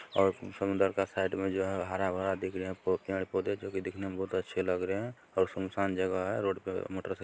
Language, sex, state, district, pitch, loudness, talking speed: Hindi, male, Bihar, Sitamarhi, 95 Hz, -33 LUFS, 250 wpm